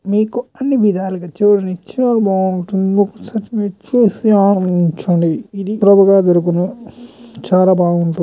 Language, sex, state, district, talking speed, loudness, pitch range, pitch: Telugu, male, Andhra Pradesh, Chittoor, 115 wpm, -14 LUFS, 185-215 Hz, 200 Hz